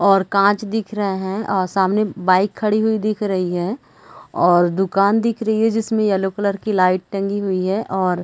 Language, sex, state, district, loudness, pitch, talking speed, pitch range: Hindi, female, Chhattisgarh, Balrampur, -18 LUFS, 200 Hz, 195 wpm, 190-215 Hz